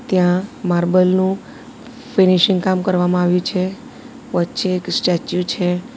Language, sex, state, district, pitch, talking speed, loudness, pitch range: Gujarati, female, Gujarat, Valsad, 185 Hz, 120 wpm, -17 LUFS, 180-240 Hz